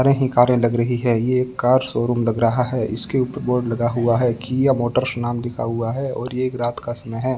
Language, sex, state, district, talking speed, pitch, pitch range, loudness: Hindi, male, Rajasthan, Bikaner, 235 wpm, 120 Hz, 120-125 Hz, -20 LUFS